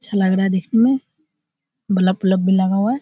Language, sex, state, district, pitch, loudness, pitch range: Hindi, female, Bihar, Kishanganj, 195 Hz, -18 LUFS, 190-235 Hz